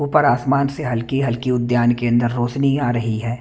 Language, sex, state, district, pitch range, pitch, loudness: Hindi, male, Chandigarh, Chandigarh, 120-140 Hz, 120 Hz, -19 LUFS